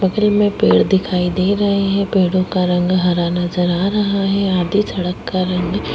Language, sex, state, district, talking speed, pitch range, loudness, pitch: Hindi, female, Uttarakhand, Tehri Garhwal, 190 wpm, 180-200 Hz, -16 LUFS, 185 Hz